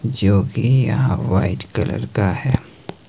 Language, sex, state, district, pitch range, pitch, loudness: Hindi, male, Himachal Pradesh, Shimla, 105-130 Hz, 120 Hz, -19 LUFS